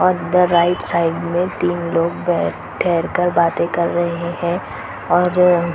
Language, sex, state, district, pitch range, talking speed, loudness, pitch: Hindi, female, Chhattisgarh, Balrampur, 170-180 Hz, 135 wpm, -18 LUFS, 170 Hz